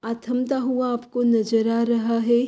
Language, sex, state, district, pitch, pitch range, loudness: Hindi, female, Uttar Pradesh, Hamirpur, 235 Hz, 230-250 Hz, -22 LUFS